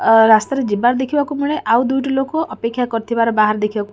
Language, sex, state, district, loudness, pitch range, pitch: Odia, female, Odisha, Khordha, -16 LUFS, 220-270 Hz, 235 Hz